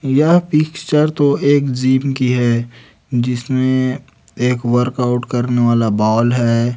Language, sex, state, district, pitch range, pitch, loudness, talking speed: Hindi, male, Chhattisgarh, Raipur, 120-140 Hz, 125 Hz, -16 LUFS, 125 wpm